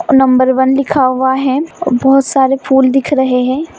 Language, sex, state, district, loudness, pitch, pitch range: Hindi, female, Bihar, Begusarai, -11 LUFS, 265 Hz, 260-275 Hz